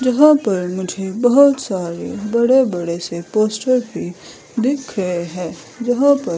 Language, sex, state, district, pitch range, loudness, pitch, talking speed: Hindi, female, Himachal Pradesh, Shimla, 180-255 Hz, -17 LUFS, 215 Hz, 140 wpm